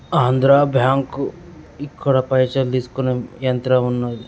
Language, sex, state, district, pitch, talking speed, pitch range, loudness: Telugu, male, Andhra Pradesh, Guntur, 130 Hz, 85 wpm, 125-135 Hz, -18 LUFS